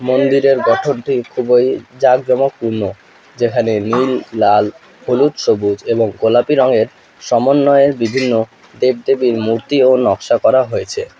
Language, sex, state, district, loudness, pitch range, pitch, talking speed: Bengali, male, West Bengal, Alipurduar, -14 LUFS, 115-135 Hz, 125 Hz, 100 wpm